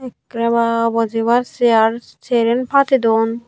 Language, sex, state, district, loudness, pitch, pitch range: Chakma, female, Tripura, Unakoti, -16 LUFS, 235 Hz, 230-245 Hz